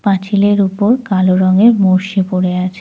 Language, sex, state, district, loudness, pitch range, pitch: Bengali, female, West Bengal, Jalpaiguri, -12 LUFS, 185-205 Hz, 190 Hz